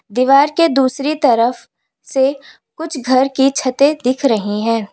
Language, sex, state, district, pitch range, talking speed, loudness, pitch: Hindi, female, Uttar Pradesh, Lalitpur, 240-280 Hz, 145 wpm, -15 LUFS, 265 Hz